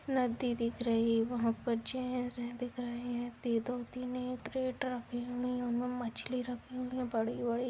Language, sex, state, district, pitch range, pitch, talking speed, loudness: Hindi, female, Bihar, Madhepura, 235-250 Hz, 245 Hz, 150 wpm, -36 LUFS